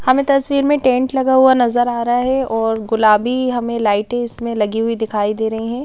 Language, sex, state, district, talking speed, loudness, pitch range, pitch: Hindi, female, Madhya Pradesh, Bhopal, 225 wpm, -16 LUFS, 225-260 Hz, 240 Hz